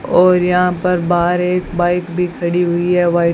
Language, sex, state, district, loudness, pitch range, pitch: Hindi, female, Rajasthan, Bikaner, -15 LUFS, 175-180 Hz, 180 Hz